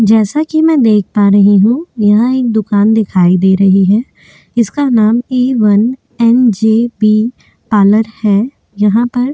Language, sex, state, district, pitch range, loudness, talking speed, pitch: Hindi, female, Chhattisgarh, Korba, 205-240 Hz, -11 LUFS, 155 wpm, 220 Hz